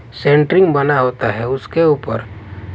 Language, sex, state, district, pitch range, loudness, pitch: Hindi, male, Maharashtra, Washim, 110-145 Hz, -15 LUFS, 130 Hz